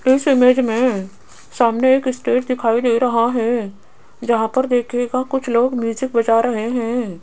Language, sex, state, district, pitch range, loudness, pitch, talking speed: Hindi, female, Rajasthan, Jaipur, 230-255 Hz, -17 LUFS, 240 Hz, 160 wpm